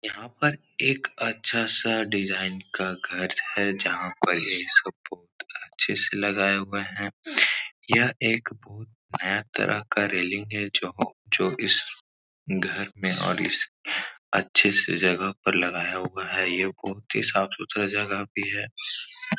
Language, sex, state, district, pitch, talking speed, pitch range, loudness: Hindi, male, Uttar Pradesh, Etah, 100 Hz, 140 wpm, 95-105 Hz, -25 LUFS